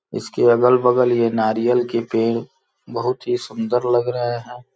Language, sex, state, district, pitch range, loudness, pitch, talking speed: Hindi, male, Uttar Pradesh, Gorakhpur, 115-125 Hz, -19 LUFS, 120 Hz, 150 wpm